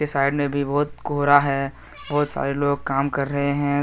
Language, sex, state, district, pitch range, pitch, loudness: Hindi, male, Jharkhand, Deoghar, 140-145 Hz, 140 Hz, -22 LUFS